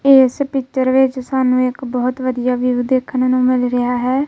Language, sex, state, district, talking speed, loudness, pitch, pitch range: Punjabi, female, Punjab, Kapurthala, 180 wpm, -16 LUFS, 255 Hz, 250-265 Hz